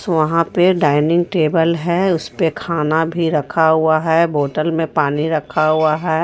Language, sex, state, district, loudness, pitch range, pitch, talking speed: Hindi, female, Jharkhand, Ranchi, -16 LUFS, 155-170 Hz, 160 Hz, 165 wpm